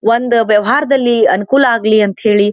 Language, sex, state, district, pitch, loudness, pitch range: Kannada, female, Karnataka, Belgaum, 230 Hz, -12 LUFS, 210-245 Hz